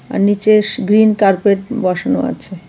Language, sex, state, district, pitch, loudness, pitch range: Bengali, female, Tripura, West Tripura, 205 Hz, -14 LUFS, 195-215 Hz